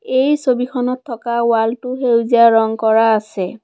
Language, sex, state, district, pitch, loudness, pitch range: Assamese, female, Assam, Kamrup Metropolitan, 235 Hz, -15 LUFS, 225-250 Hz